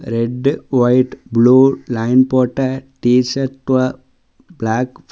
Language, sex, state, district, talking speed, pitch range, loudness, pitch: Tamil, male, Tamil Nadu, Namakkal, 105 wpm, 120-130 Hz, -15 LUFS, 130 Hz